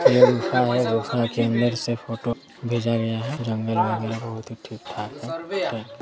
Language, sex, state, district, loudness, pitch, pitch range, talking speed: Hindi, male, Chhattisgarh, Sarguja, -24 LUFS, 115 Hz, 115-125 Hz, 130 wpm